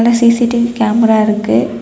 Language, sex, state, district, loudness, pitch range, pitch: Tamil, female, Tamil Nadu, Kanyakumari, -12 LUFS, 215-235 Hz, 230 Hz